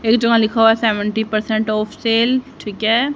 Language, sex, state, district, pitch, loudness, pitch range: Hindi, female, Haryana, Rohtak, 225 Hz, -17 LUFS, 215-230 Hz